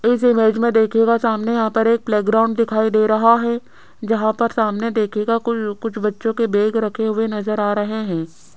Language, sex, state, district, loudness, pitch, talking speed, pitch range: Hindi, female, Rajasthan, Jaipur, -18 LUFS, 220 Hz, 195 wpm, 215-230 Hz